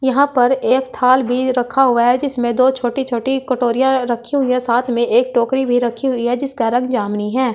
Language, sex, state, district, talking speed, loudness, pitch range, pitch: Hindi, female, Delhi, New Delhi, 225 wpm, -16 LUFS, 240-265 Hz, 250 Hz